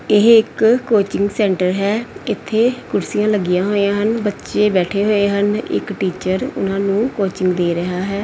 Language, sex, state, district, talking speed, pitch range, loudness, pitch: Punjabi, female, Punjab, Pathankot, 160 wpm, 190-215 Hz, -17 LUFS, 205 Hz